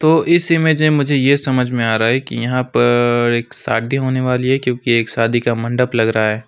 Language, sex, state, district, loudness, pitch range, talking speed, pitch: Hindi, male, West Bengal, Alipurduar, -16 LUFS, 115-135 Hz, 240 wpm, 125 Hz